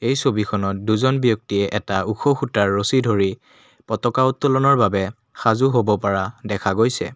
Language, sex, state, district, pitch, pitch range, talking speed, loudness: Assamese, male, Assam, Kamrup Metropolitan, 110 Hz, 100-130 Hz, 140 wpm, -20 LUFS